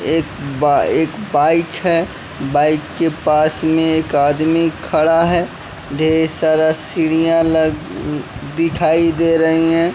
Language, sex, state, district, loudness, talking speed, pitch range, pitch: Hindi, male, Bihar, West Champaran, -15 LUFS, 125 wpm, 155-165 Hz, 160 Hz